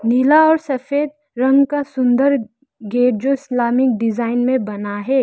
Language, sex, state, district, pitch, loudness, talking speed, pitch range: Hindi, female, Arunachal Pradesh, Lower Dibang Valley, 260 Hz, -17 LUFS, 150 wpm, 235-280 Hz